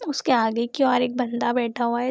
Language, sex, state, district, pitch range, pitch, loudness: Hindi, female, Bihar, Vaishali, 235-255 Hz, 245 Hz, -23 LUFS